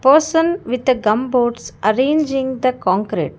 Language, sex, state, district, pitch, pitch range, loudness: English, female, Karnataka, Bangalore, 260 Hz, 245-285 Hz, -17 LUFS